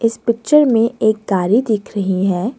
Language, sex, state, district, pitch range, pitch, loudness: Hindi, female, Assam, Kamrup Metropolitan, 200-230 Hz, 225 Hz, -16 LUFS